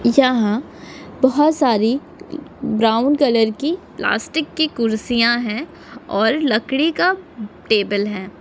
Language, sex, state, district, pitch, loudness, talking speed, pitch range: Hindi, female, Maharashtra, Pune, 245 Hz, -18 LUFS, 115 wpm, 220-295 Hz